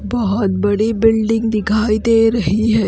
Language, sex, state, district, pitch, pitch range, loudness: Hindi, female, Haryana, Rohtak, 220 Hz, 205-225 Hz, -15 LUFS